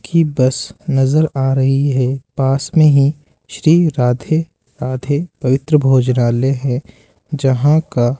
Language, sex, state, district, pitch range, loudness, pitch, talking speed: Hindi, male, Rajasthan, Jaipur, 130-150 Hz, -15 LUFS, 135 Hz, 130 wpm